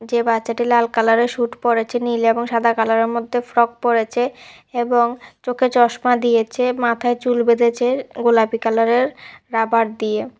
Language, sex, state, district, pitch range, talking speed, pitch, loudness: Bengali, female, Tripura, West Tripura, 230-245 Hz, 140 wpm, 235 Hz, -18 LUFS